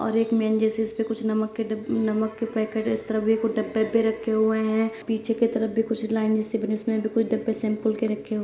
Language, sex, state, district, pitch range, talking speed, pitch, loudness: Hindi, male, Bihar, Purnia, 220-225 Hz, 270 wpm, 220 Hz, -25 LUFS